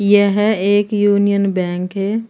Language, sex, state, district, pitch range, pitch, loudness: Hindi, female, Uttar Pradesh, Saharanpur, 195-205 Hz, 200 Hz, -16 LUFS